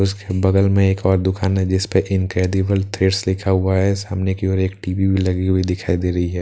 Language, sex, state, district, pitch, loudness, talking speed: Hindi, male, Bihar, Katihar, 95 Hz, -18 LUFS, 235 wpm